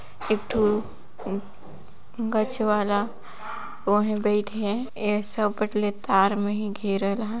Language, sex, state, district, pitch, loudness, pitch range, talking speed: Sadri, female, Chhattisgarh, Jashpur, 210 Hz, -25 LUFS, 205-215 Hz, 145 wpm